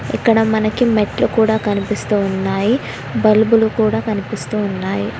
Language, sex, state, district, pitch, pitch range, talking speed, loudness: Telugu, female, Telangana, Hyderabad, 215 Hz, 200-220 Hz, 115 wpm, -16 LUFS